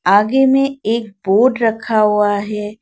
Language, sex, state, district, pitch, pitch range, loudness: Hindi, female, Arunachal Pradesh, Lower Dibang Valley, 215 Hz, 205-235 Hz, -15 LUFS